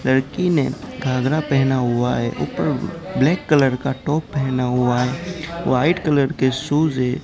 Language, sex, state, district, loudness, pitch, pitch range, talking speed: Hindi, male, Gujarat, Gandhinagar, -20 LUFS, 135 Hz, 125-155 Hz, 155 wpm